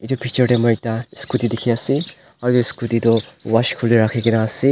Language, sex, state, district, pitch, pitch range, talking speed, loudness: Nagamese, male, Nagaland, Dimapur, 120 Hz, 115-125 Hz, 240 wpm, -18 LUFS